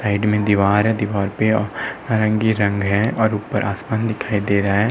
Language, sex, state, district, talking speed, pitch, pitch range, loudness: Hindi, male, Uttar Pradesh, Muzaffarnagar, 195 wpm, 105 Hz, 100-110 Hz, -19 LUFS